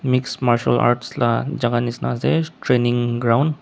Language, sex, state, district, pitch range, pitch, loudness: Nagamese, male, Nagaland, Dimapur, 120-135 Hz, 120 Hz, -19 LUFS